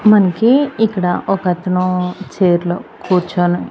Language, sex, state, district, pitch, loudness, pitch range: Telugu, female, Andhra Pradesh, Annamaya, 185 Hz, -16 LUFS, 180-200 Hz